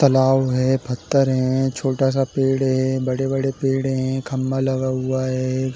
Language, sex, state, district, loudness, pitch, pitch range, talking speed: Hindi, male, Chhattisgarh, Balrampur, -20 LUFS, 130 Hz, 130-135 Hz, 190 wpm